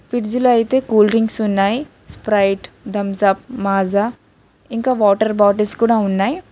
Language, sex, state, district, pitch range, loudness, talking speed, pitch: Telugu, female, Telangana, Hyderabad, 200-235 Hz, -17 LUFS, 130 wpm, 215 Hz